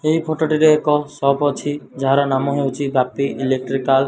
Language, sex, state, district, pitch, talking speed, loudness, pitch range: Odia, male, Odisha, Malkangiri, 140 Hz, 175 wpm, -18 LUFS, 135-150 Hz